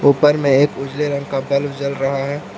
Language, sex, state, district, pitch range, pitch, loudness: Hindi, male, Jharkhand, Palamu, 135-145 Hz, 140 Hz, -18 LUFS